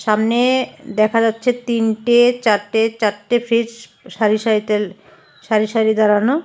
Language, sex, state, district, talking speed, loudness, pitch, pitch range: Bengali, female, Assam, Hailakandi, 110 wpm, -17 LUFS, 225 Hz, 215-240 Hz